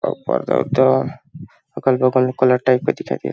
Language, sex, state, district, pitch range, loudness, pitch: Hindi, male, Chhattisgarh, Balrampur, 125-130 Hz, -17 LUFS, 130 Hz